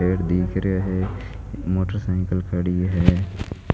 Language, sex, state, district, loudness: Rajasthani, male, Rajasthan, Nagaur, -23 LUFS